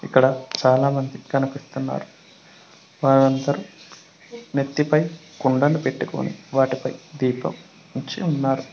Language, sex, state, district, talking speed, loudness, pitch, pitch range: Telugu, male, Telangana, Mahabubabad, 75 wpm, -22 LUFS, 140 Hz, 130-165 Hz